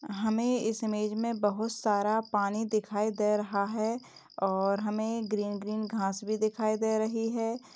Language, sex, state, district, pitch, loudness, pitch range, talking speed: Hindi, female, Uttar Pradesh, Etah, 215 Hz, -30 LUFS, 210-225 Hz, 160 wpm